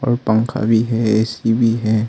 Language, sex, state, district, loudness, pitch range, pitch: Hindi, male, Arunachal Pradesh, Longding, -17 LUFS, 110-115 Hz, 115 Hz